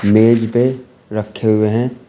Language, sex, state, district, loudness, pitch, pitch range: Hindi, male, Uttar Pradesh, Shamli, -15 LUFS, 115 Hz, 110-125 Hz